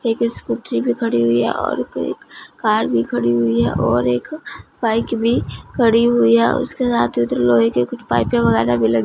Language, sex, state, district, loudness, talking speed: Hindi, female, Punjab, Fazilka, -17 LUFS, 220 wpm